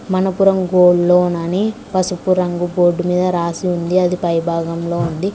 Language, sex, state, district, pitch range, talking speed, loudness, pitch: Telugu, female, Telangana, Mahabubabad, 170-185 Hz, 155 wpm, -16 LUFS, 180 Hz